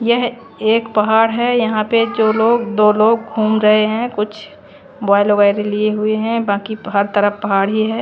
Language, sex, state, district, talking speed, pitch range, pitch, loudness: Hindi, female, Haryana, Charkhi Dadri, 170 wpm, 210-225 Hz, 215 Hz, -15 LUFS